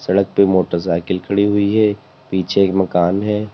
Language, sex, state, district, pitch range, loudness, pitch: Hindi, male, Uttar Pradesh, Lalitpur, 90-105 Hz, -16 LUFS, 100 Hz